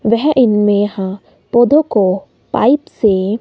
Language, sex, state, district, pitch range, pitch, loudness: Hindi, female, Himachal Pradesh, Shimla, 200-260 Hz, 215 Hz, -14 LUFS